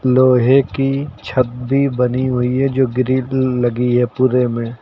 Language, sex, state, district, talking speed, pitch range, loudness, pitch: Hindi, male, Uttar Pradesh, Lucknow, 160 wpm, 125-130 Hz, -16 LUFS, 130 Hz